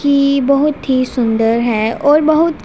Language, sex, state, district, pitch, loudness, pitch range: Hindi, female, Punjab, Pathankot, 275 Hz, -13 LUFS, 235-290 Hz